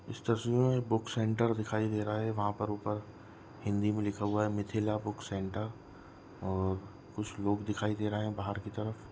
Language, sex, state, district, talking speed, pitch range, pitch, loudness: Hindi, male, Maharashtra, Sindhudurg, 195 wpm, 105-110 Hz, 105 Hz, -34 LUFS